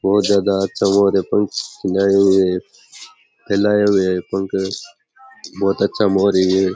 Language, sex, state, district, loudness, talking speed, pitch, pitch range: Rajasthani, male, Rajasthan, Churu, -17 LUFS, 80 wpm, 100 Hz, 95-100 Hz